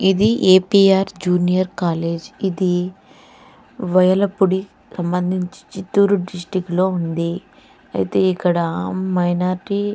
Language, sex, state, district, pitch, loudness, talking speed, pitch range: Telugu, female, Andhra Pradesh, Chittoor, 185 Hz, -18 LUFS, 90 wpm, 180-195 Hz